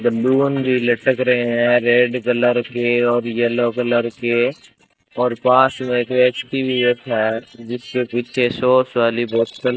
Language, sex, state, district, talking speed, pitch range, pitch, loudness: Hindi, male, Rajasthan, Bikaner, 155 wpm, 120-125 Hz, 120 Hz, -18 LUFS